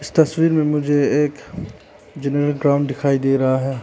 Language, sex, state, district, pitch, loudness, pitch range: Hindi, male, Arunachal Pradesh, Papum Pare, 145 Hz, -18 LUFS, 140-150 Hz